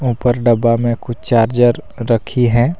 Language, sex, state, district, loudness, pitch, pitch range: Hindi, male, Jharkhand, Deoghar, -15 LUFS, 120 Hz, 115-120 Hz